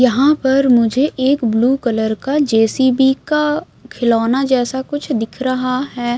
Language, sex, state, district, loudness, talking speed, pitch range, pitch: Hindi, female, Bihar, West Champaran, -16 LUFS, 145 wpm, 240-275 Hz, 260 Hz